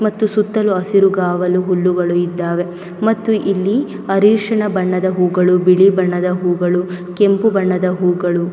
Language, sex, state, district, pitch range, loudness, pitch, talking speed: Kannada, female, Karnataka, Mysore, 180-205 Hz, -15 LUFS, 185 Hz, 115 wpm